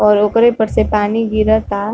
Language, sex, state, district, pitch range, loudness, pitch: Bhojpuri, female, Uttar Pradesh, Varanasi, 210-220 Hz, -14 LUFS, 215 Hz